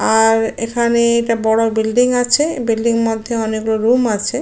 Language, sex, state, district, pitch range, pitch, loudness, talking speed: Bengali, female, West Bengal, Jalpaiguri, 220-235 Hz, 230 Hz, -15 LUFS, 175 wpm